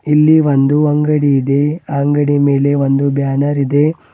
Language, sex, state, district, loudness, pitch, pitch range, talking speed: Kannada, male, Karnataka, Bidar, -13 LUFS, 145 Hz, 140-150 Hz, 145 wpm